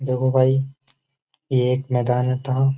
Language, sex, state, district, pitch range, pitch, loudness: Hindi, male, Uttar Pradesh, Jyotiba Phule Nagar, 125-135 Hz, 130 Hz, -21 LUFS